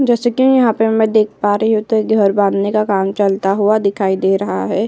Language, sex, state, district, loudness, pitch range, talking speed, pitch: Hindi, female, Uttar Pradesh, Jyotiba Phule Nagar, -14 LUFS, 200-220 Hz, 245 wpm, 210 Hz